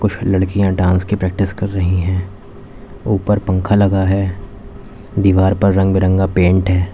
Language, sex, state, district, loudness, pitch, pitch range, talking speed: Hindi, male, Uttar Pradesh, Lalitpur, -15 LUFS, 95 Hz, 95-100 Hz, 145 wpm